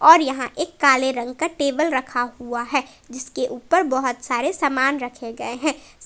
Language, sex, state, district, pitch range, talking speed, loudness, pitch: Hindi, female, Jharkhand, Palamu, 245-295 Hz, 180 wpm, -21 LUFS, 260 Hz